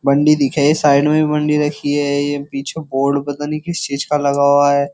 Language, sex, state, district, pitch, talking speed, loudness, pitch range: Hindi, male, Uttar Pradesh, Jyotiba Phule Nagar, 145 Hz, 255 wpm, -16 LUFS, 140-150 Hz